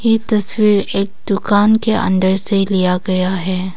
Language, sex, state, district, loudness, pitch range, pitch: Hindi, female, Arunachal Pradesh, Papum Pare, -14 LUFS, 185-215 Hz, 195 Hz